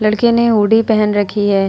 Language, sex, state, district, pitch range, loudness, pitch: Hindi, female, Bihar, Vaishali, 205-225 Hz, -13 LUFS, 215 Hz